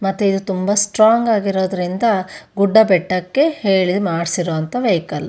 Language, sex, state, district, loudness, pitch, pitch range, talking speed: Kannada, female, Karnataka, Shimoga, -16 LUFS, 195 Hz, 180-215 Hz, 115 wpm